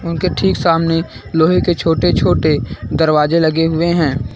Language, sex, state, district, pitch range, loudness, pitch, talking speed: Hindi, male, Uttar Pradesh, Lucknow, 155-170 Hz, -15 LUFS, 165 Hz, 150 wpm